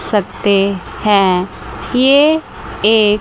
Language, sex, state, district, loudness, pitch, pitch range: Hindi, female, Chandigarh, Chandigarh, -13 LUFS, 210 Hz, 195-250 Hz